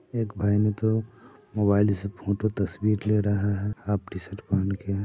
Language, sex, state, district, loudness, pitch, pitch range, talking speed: Hindi, male, Bihar, Sitamarhi, -26 LUFS, 105 Hz, 100-105 Hz, 190 wpm